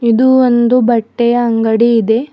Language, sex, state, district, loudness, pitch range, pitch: Kannada, female, Karnataka, Bidar, -11 LUFS, 230-245 Hz, 235 Hz